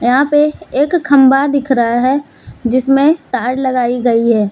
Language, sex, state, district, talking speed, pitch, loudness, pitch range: Hindi, female, Jharkhand, Deoghar, 160 wpm, 265 Hz, -13 LUFS, 245-285 Hz